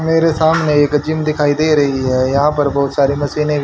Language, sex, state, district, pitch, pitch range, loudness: Hindi, male, Haryana, Rohtak, 150 Hz, 140-155 Hz, -14 LUFS